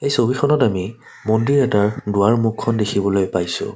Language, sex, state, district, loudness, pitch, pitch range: Assamese, male, Assam, Kamrup Metropolitan, -18 LUFS, 110 Hz, 100-120 Hz